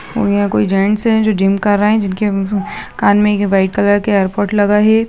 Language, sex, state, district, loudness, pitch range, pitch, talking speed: Hindi, male, Bihar, Gaya, -14 LUFS, 195-210 Hz, 205 Hz, 235 wpm